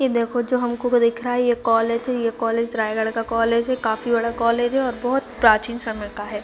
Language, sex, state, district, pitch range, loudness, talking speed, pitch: Hindi, female, Chhattisgarh, Raigarh, 225-245 Hz, -21 LUFS, 260 wpm, 235 Hz